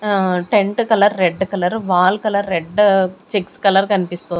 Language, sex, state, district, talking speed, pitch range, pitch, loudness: Telugu, female, Andhra Pradesh, Sri Satya Sai, 150 wpm, 180-205 Hz, 195 Hz, -16 LUFS